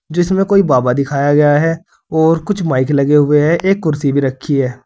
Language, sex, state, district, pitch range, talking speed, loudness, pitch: Hindi, male, Uttar Pradesh, Saharanpur, 140-165 Hz, 210 wpm, -13 LUFS, 150 Hz